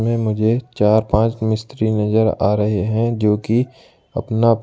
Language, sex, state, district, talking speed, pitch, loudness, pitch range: Hindi, male, Jharkhand, Ranchi, 155 wpm, 110 Hz, -18 LUFS, 110-115 Hz